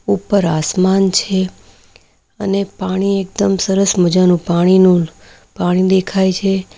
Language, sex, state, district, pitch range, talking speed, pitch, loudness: Gujarati, female, Gujarat, Valsad, 170-195 Hz, 105 wpm, 185 Hz, -14 LUFS